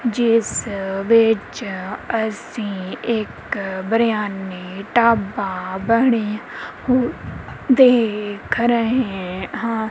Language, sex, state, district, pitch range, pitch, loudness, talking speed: Punjabi, female, Punjab, Kapurthala, 195-235 Hz, 220 Hz, -20 LUFS, 65 wpm